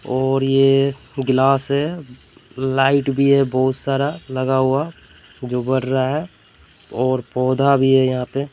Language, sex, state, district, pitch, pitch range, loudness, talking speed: Hindi, male, Bihar, Katihar, 135 Hz, 130-140 Hz, -18 LUFS, 150 wpm